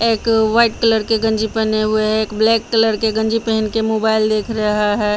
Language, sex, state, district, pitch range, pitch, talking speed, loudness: Hindi, female, Bihar, Patna, 215-225 Hz, 220 Hz, 220 wpm, -16 LUFS